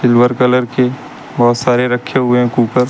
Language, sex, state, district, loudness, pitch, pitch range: Hindi, male, Uttar Pradesh, Lucknow, -13 LUFS, 125 Hz, 120-125 Hz